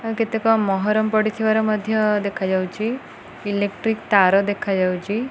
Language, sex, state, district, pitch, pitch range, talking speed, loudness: Odia, female, Odisha, Khordha, 215 Hz, 200-220 Hz, 90 wpm, -20 LUFS